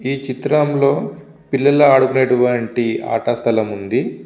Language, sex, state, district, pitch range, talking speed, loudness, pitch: Telugu, male, Andhra Pradesh, Visakhapatnam, 120-140 Hz, 125 wpm, -16 LUFS, 130 Hz